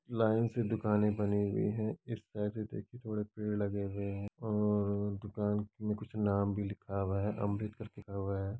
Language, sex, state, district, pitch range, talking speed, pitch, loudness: Hindi, male, Uttar Pradesh, Etah, 100-105 Hz, 210 wpm, 105 Hz, -35 LUFS